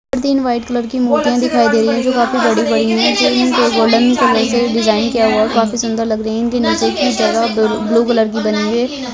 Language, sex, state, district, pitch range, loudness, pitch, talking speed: Hindi, female, Chhattisgarh, Bilaspur, 220-245 Hz, -14 LUFS, 230 Hz, 230 wpm